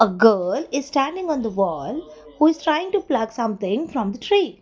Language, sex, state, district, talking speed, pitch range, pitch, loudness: English, female, Gujarat, Valsad, 210 wpm, 210-310 Hz, 265 Hz, -21 LUFS